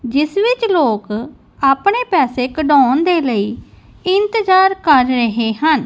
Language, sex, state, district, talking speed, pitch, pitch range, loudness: Punjabi, female, Punjab, Kapurthala, 125 wpm, 295 Hz, 250-380 Hz, -15 LUFS